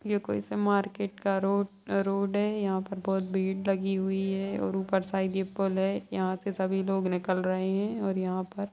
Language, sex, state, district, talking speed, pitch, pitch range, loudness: Hindi, female, Bihar, Sitamarhi, 205 wpm, 195 Hz, 190-200 Hz, -30 LUFS